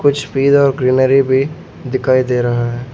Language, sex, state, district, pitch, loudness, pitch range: Hindi, male, Arunachal Pradesh, Lower Dibang Valley, 130 Hz, -14 LUFS, 130-135 Hz